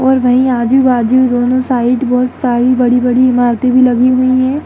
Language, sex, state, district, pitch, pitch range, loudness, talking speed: Kumaoni, female, Uttarakhand, Tehri Garhwal, 250 Hz, 245-255 Hz, -11 LUFS, 165 wpm